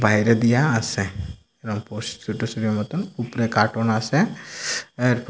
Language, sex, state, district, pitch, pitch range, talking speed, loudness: Bengali, male, Tripura, Dhalai, 115 Hz, 105-120 Hz, 100 wpm, -23 LUFS